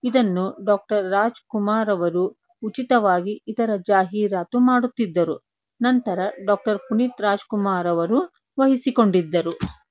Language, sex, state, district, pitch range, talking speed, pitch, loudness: Kannada, female, Karnataka, Dharwad, 190-245 Hz, 90 wpm, 210 Hz, -21 LUFS